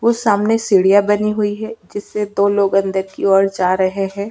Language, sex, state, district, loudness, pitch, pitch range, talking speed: Hindi, female, Chhattisgarh, Sukma, -16 LUFS, 200 Hz, 195-210 Hz, 210 wpm